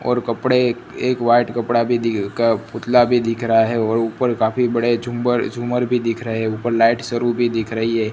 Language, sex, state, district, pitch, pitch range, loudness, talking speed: Hindi, male, Gujarat, Gandhinagar, 120 Hz, 115-120 Hz, -18 LUFS, 205 wpm